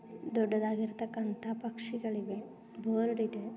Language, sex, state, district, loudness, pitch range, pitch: Kannada, female, Karnataka, Dharwad, -35 LUFS, 220-225 Hz, 225 Hz